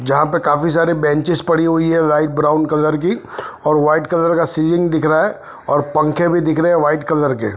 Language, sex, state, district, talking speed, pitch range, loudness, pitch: Hindi, male, Punjab, Fazilka, 230 wpm, 150-165 Hz, -15 LUFS, 155 Hz